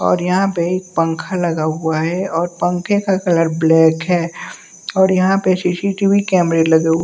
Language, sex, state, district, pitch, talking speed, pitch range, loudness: Hindi, male, Bihar, West Champaran, 175 Hz, 170 wpm, 165-190 Hz, -16 LUFS